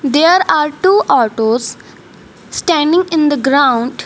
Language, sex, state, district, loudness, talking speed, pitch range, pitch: English, female, Punjab, Fazilka, -12 LUFS, 120 wpm, 260-330 Hz, 295 Hz